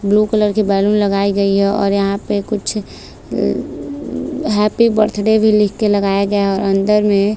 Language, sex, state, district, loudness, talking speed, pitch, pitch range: Hindi, female, Maharashtra, Chandrapur, -15 LUFS, 195 wpm, 205 Hz, 200-215 Hz